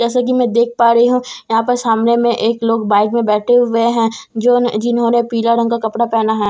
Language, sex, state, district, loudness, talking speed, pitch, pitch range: Hindi, female, Bihar, Katihar, -14 LUFS, 250 wpm, 235 Hz, 225-240 Hz